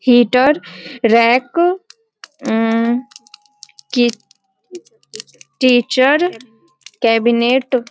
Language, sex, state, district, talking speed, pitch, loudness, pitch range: Hindi, female, Bihar, Muzaffarpur, 55 wpm, 250 Hz, -15 LUFS, 230-345 Hz